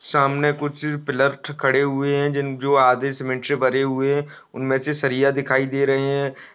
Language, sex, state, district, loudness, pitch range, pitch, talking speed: Hindi, male, Chhattisgarh, Balrampur, -21 LUFS, 135-145 Hz, 140 Hz, 185 wpm